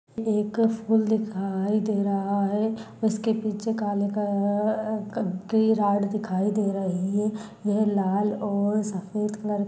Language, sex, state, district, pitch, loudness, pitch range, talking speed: Hindi, female, Maharashtra, Pune, 210 Hz, -26 LUFS, 200-220 Hz, 135 wpm